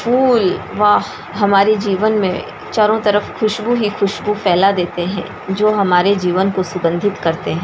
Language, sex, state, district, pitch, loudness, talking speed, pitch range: Hindi, female, Bihar, Darbhanga, 200 Hz, -16 LUFS, 155 wpm, 185-215 Hz